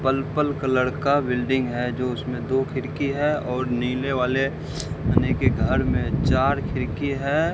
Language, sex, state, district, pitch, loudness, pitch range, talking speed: Hindi, male, Rajasthan, Bikaner, 135 Hz, -23 LUFS, 125-140 Hz, 160 wpm